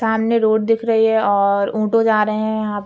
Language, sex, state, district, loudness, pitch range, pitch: Hindi, female, Uttar Pradesh, Varanasi, -17 LUFS, 210-225 Hz, 220 Hz